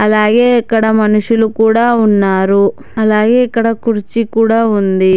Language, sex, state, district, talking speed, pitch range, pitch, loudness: Telugu, female, Telangana, Hyderabad, 115 wpm, 210-230 Hz, 220 Hz, -11 LUFS